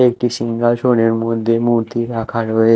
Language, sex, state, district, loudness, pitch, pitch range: Bengali, male, Odisha, Malkangiri, -17 LUFS, 115 Hz, 115-120 Hz